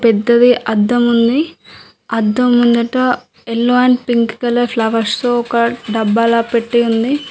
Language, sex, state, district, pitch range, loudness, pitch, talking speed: Telugu, female, Telangana, Mahabubabad, 230-245 Hz, -14 LUFS, 235 Hz, 125 wpm